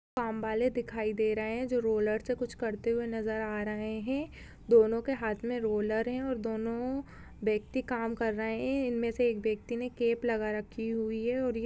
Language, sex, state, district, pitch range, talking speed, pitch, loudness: Hindi, female, Uttar Pradesh, Budaun, 220-245 Hz, 220 wpm, 230 Hz, -32 LUFS